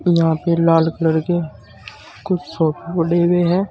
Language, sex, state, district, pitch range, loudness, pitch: Hindi, male, Uttar Pradesh, Saharanpur, 160-175 Hz, -17 LUFS, 165 Hz